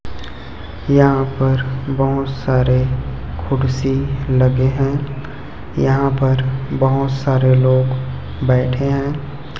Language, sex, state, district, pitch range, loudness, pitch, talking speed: Hindi, male, Chhattisgarh, Raipur, 130-135 Hz, -17 LUFS, 135 Hz, 85 wpm